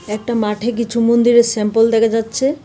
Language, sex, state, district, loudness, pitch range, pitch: Bengali, female, Tripura, West Tripura, -15 LUFS, 225-235 Hz, 230 Hz